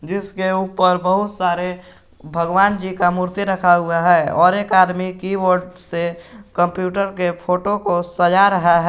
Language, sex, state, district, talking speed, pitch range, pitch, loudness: Hindi, male, Jharkhand, Garhwa, 155 wpm, 175-195 Hz, 180 Hz, -17 LUFS